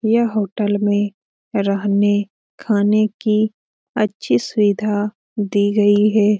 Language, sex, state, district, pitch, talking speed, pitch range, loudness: Hindi, female, Bihar, Lakhisarai, 210 Hz, 115 wpm, 205-215 Hz, -18 LUFS